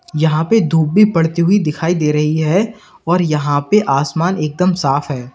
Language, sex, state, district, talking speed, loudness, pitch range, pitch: Hindi, male, Uttar Pradesh, Lalitpur, 190 wpm, -15 LUFS, 150-185 Hz, 160 Hz